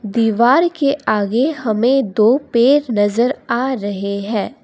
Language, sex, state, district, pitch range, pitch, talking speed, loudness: Hindi, female, Assam, Kamrup Metropolitan, 215-265 Hz, 235 Hz, 130 wpm, -16 LUFS